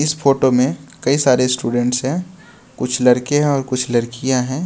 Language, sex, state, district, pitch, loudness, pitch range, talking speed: Hindi, male, Bihar, West Champaran, 130 Hz, -17 LUFS, 125-145 Hz, 180 wpm